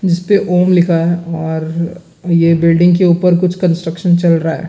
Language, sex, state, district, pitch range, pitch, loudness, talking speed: Hindi, male, Bihar, Gaya, 165-180 Hz, 170 Hz, -13 LUFS, 180 wpm